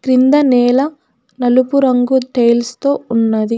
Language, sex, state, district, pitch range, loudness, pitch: Telugu, female, Telangana, Hyderabad, 235-265 Hz, -13 LUFS, 255 Hz